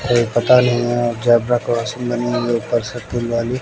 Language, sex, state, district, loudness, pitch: Hindi, male, Bihar, West Champaran, -17 LUFS, 120 Hz